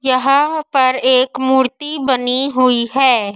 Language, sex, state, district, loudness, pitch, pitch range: Hindi, female, Madhya Pradesh, Dhar, -14 LUFS, 260 Hz, 255-275 Hz